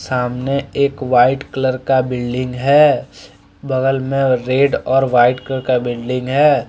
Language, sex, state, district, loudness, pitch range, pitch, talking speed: Hindi, male, Jharkhand, Deoghar, -16 LUFS, 125-135 Hz, 130 Hz, 145 wpm